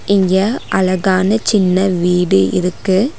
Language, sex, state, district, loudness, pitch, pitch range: Tamil, female, Tamil Nadu, Nilgiris, -14 LUFS, 190 Hz, 180-200 Hz